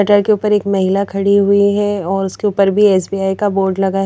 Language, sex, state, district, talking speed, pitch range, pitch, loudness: Hindi, female, Odisha, Nuapada, 235 wpm, 195-205 Hz, 200 Hz, -14 LUFS